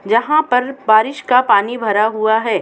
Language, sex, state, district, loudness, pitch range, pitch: Hindi, female, Uttar Pradesh, Muzaffarnagar, -14 LUFS, 220-250 Hz, 230 Hz